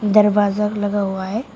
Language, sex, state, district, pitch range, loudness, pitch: Hindi, female, Uttar Pradesh, Shamli, 205-210 Hz, -18 LUFS, 205 Hz